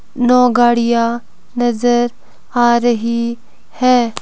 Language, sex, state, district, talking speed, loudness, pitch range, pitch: Hindi, female, Himachal Pradesh, Shimla, 85 wpm, -14 LUFS, 235-245 Hz, 240 Hz